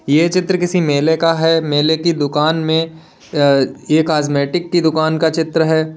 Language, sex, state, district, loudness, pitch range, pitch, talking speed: Hindi, male, Uttar Pradesh, Lalitpur, -15 LUFS, 150-165 Hz, 160 Hz, 180 wpm